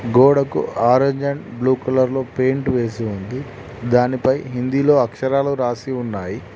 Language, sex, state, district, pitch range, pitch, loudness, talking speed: Telugu, male, Telangana, Mahabubabad, 120-135 Hz, 130 Hz, -19 LUFS, 130 wpm